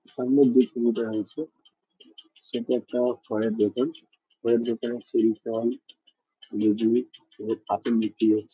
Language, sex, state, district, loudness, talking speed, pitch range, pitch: Bengali, male, West Bengal, Jalpaiguri, -26 LUFS, 90 wpm, 110-125 Hz, 120 Hz